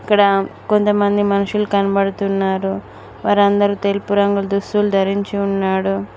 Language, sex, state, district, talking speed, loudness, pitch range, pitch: Telugu, female, Telangana, Mahabubabad, 95 wpm, -17 LUFS, 195-205 Hz, 200 Hz